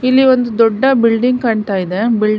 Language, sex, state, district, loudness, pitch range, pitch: Kannada, female, Karnataka, Mysore, -13 LUFS, 215-250 Hz, 230 Hz